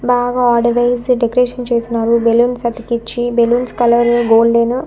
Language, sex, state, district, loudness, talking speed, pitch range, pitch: Telugu, female, Andhra Pradesh, Annamaya, -14 LUFS, 125 wpm, 235-245 Hz, 240 Hz